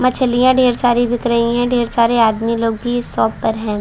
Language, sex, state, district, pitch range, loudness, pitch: Hindi, female, Chhattisgarh, Balrampur, 230-245 Hz, -15 LUFS, 240 Hz